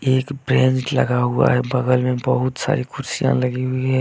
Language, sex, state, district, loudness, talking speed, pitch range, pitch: Hindi, male, Jharkhand, Deoghar, -19 LUFS, 195 wpm, 125-130 Hz, 130 Hz